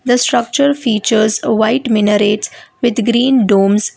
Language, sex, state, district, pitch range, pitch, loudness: English, female, Karnataka, Bangalore, 210-245 Hz, 225 Hz, -13 LUFS